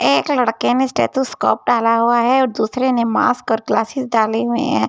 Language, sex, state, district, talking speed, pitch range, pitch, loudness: Hindi, female, Delhi, New Delhi, 220 wpm, 230-260 Hz, 240 Hz, -17 LUFS